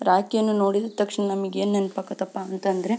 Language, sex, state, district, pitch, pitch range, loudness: Kannada, female, Karnataka, Belgaum, 195 Hz, 190-205 Hz, -24 LUFS